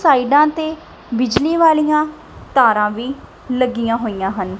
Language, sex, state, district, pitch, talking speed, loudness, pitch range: Punjabi, female, Punjab, Kapurthala, 255 Hz, 115 wpm, -17 LUFS, 225-305 Hz